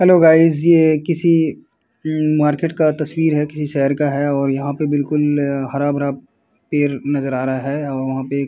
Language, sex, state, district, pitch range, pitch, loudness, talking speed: Hindi, male, Uttar Pradesh, Varanasi, 140-155 Hz, 150 Hz, -17 LUFS, 200 wpm